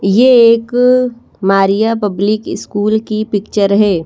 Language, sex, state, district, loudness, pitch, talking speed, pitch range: Hindi, female, Madhya Pradesh, Bhopal, -12 LUFS, 215 Hz, 120 wpm, 200-230 Hz